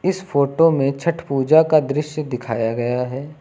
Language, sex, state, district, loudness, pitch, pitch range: Hindi, male, Uttar Pradesh, Lucknow, -19 LUFS, 140 Hz, 130-160 Hz